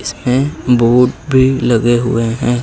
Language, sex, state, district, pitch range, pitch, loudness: Hindi, male, Uttar Pradesh, Lucknow, 120-130 Hz, 125 Hz, -13 LUFS